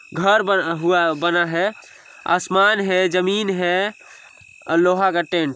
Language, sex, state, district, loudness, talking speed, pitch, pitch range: Hindi, male, Chhattisgarh, Sarguja, -18 LUFS, 140 wpm, 180 Hz, 170-195 Hz